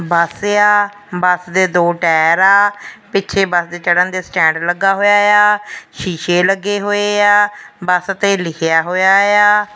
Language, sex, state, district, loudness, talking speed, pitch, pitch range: Punjabi, female, Punjab, Fazilka, -13 LUFS, 155 wpm, 195 Hz, 175-205 Hz